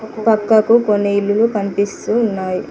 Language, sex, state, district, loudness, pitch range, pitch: Telugu, female, Telangana, Mahabubabad, -16 LUFS, 200-225 Hz, 210 Hz